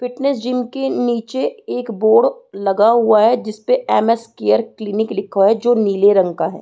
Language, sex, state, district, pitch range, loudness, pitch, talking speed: Hindi, female, Bihar, Saran, 205-250 Hz, -16 LUFS, 230 Hz, 210 wpm